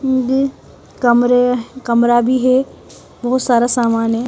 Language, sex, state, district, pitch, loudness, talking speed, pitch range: Hindi, female, Haryana, Charkhi Dadri, 245 Hz, -15 LUFS, 110 wpm, 240-255 Hz